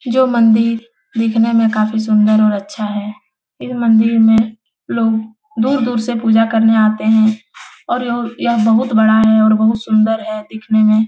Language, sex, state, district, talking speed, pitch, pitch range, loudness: Hindi, female, Bihar, Jahanabad, 175 wpm, 220 Hz, 220-230 Hz, -14 LUFS